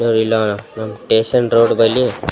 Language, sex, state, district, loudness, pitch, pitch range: Kannada, male, Karnataka, Raichur, -15 LUFS, 110 Hz, 110-115 Hz